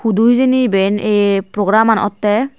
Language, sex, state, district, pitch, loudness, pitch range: Chakma, female, Tripura, Dhalai, 215 Hz, -14 LUFS, 205-235 Hz